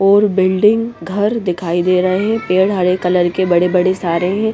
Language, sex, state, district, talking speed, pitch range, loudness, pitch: Hindi, female, Bihar, West Champaran, 200 wpm, 180-205 Hz, -15 LUFS, 185 Hz